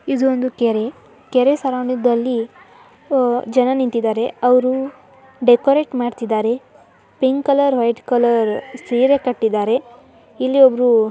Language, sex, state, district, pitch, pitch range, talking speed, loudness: Kannada, male, Karnataka, Dharwad, 250 Hz, 235-265 Hz, 105 wpm, -17 LUFS